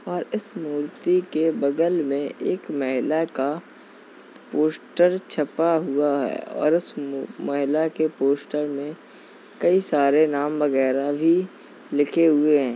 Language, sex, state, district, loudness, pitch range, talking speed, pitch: Hindi, male, Uttar Pradesh, Jalaun, -23 LUFS, 140-165 Hz, 125 wpm, 150 Hz